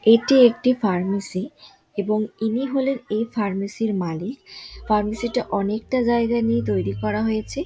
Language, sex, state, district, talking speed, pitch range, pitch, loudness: Bengali, female, West Bengal, Dakshin Dinajpur, 125 wpm, 200-245 Hz, 220 Hz, -22 LUFS